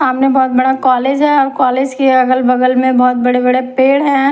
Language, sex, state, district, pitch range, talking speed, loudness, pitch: Hindi, female, Punjab, Fazilka, 255-270 Hz, 220 wpm, -12 LUFS, 260 Hz